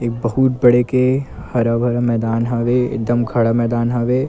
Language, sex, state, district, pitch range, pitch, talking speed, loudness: Chhattisgarhi, male, Chhattisgarh, Kabirdham, 115-125 Hz, 120 Hz, 155 wpm, -17 LUFS